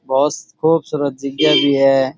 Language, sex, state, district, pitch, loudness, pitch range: Rajasthani, male, Rajasthan, Churu, 140 Hz, -16 LUFS, 135-150 Hz